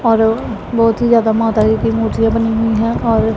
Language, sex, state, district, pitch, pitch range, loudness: Hindi, female, Punjab, Pathankot, 225 Hz, 220-230 Hz, -14 LUFS